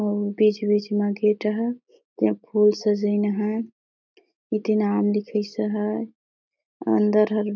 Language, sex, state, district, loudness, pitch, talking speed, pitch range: Surgujia, female, Chhattisgarh, Sarguja, -23 LUFS, 210 Hz, 135 wpm, 205-220 Hz